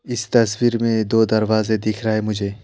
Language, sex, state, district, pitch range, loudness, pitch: Hindi, male, West Bengal, Alipurduar, 110-115 Hz, -19 LUFS, 110 Hz